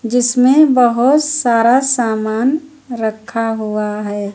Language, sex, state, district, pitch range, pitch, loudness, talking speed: Hindi, female, Uttar Pradesh, Lucknow, 220-260 Hz, 235 Hz, -14 LUFS, 95 wpm